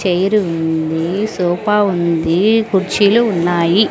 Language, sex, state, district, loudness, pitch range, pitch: Telugu, female, Andhra Pradesh, Sri Satya Sai, -15 LUFS, 170-210 Hz, 185 Hz